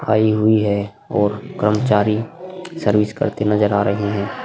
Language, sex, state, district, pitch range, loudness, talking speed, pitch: Hindi, male, Bihar, Vaishali, 105-110 Hz, -18 LUFS, 150 wpm, 105 Hz